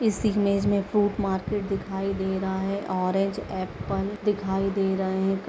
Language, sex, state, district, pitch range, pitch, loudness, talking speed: Hindi, female, Chhattisgarh, Raigarh, 190-200 Hz, 195 Hz, -26 LUFS, 165 wpm